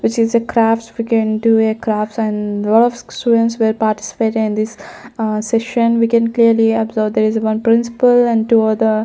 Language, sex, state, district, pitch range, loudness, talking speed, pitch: English, female, Chandigarh, Chandigarh, 220-230 Hz, -15 LUFS, 205 wpm, 225 Hz